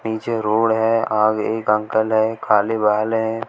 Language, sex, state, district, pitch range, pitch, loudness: Hindi, male, Uttar Pradesh, Shamli, 110-115 Hz, 110 Hz, -18 LUFS